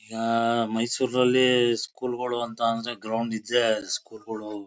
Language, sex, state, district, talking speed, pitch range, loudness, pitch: Kannada, male, Karnataka, Mysore, 130 wpm, 110-120 Hz, -25 LUFS, 115 Hz